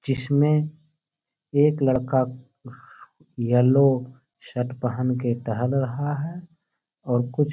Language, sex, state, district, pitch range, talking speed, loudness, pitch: Hindi, male, Bihar, Bhagalpur, 125-150 Hz, 95 wpm, -23 LUFS, 135 Hz